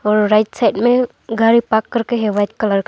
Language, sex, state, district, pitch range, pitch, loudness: Hindi, female, Arunachal Pradesh, Longding, 210-235 Hz, 220 Hz, -16 LUFS